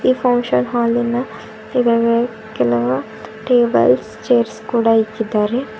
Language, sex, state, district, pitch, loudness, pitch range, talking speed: Kannada, female, Karnataka, Bidar, 230 Hz, -17 LUFS, 215-245 Hz, 70 wpm